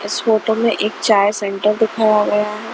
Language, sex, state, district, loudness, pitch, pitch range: Hindi, female, Punjab, Kapurthala, -16 LUFS, 210 Hz, 210-220 Hz